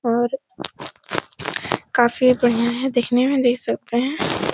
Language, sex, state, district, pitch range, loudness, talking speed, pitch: Hindi, female, Uttar Pradesh, Etah, 240-255 Hz, -20 LUFS, 130 wpm, 245 Hz